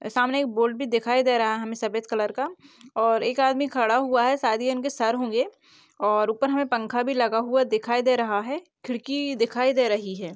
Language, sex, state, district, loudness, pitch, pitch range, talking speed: Hindi, female, Chhattisgarh, Bastar, -24 LUFS, 245 Hz, 225-265 Hz, 225 wpm